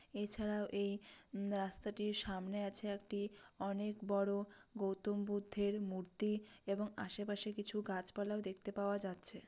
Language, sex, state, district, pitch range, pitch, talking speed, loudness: Bengali, female, West Bengal, Dakshin Dinajpur, 200-210 Hz, 205 Hz, 120 wpm, -42 LUFS